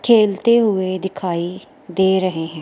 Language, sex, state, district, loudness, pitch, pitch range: Hindi, female, Himachal Pradesh, Shimla, -18 LUFS, 190 Hz, 175-205 Hz